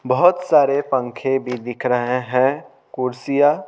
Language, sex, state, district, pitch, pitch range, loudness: Hindi, male, Bihar, Patna, 130 Hz, 125-145 Hz, -19 LUFS